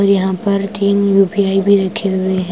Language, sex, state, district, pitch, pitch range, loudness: Hindi, female, Punjab, Kapurthala, 195 Hz, 190-200 Hz, -14 LUFS